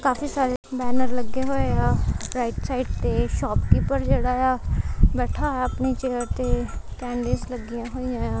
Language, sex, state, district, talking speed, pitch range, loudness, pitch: Punjabi, female, Punjab, Kapurthala, 170 wpm, 245-260 Hz, -25 LUFS, 250 Hz